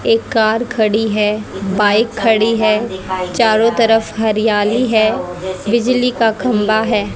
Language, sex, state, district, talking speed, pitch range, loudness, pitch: Hindi, female, Haryana, Rohtak, 125 wpm, 210-230 Hz, -15 LUFS, 220 Hz